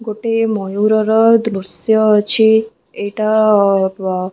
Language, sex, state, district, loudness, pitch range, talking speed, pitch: Odia, female, Odisha, Khordha, -14 LUFS, 200-220 Hz, 95 wpm, 215 Hz